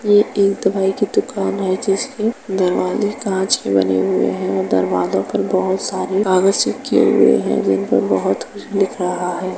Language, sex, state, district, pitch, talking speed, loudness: Hindi, female, Uttar Pradesh, Jalaun, 190 Hz, 175 wpm, -17 LUFS